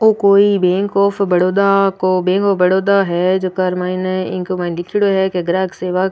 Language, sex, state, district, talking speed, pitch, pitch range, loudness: Rajasthani, female, Rajasthan, Nagaur, 195 wpm, 185 Hz, 180-200 Hz, -15 LUFS